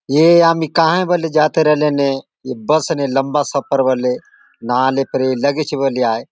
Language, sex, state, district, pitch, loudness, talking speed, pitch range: Halbi, male, Chhattisgarh, Bastar, 140 Hz, -15 LUFS, 160 wpm, 130-155 Hz